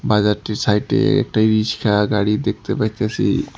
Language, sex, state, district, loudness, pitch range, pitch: Bengali, male, West Bengal, Alipurduar, -18 LUFS, 105-115 Hz, 110 Hz